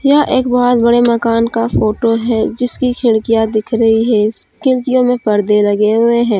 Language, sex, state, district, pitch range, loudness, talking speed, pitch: Hindi, female, Jharkhand, Deoghar, 220-245 Hz, -13 LUFS, 180 wpm, 230 Hz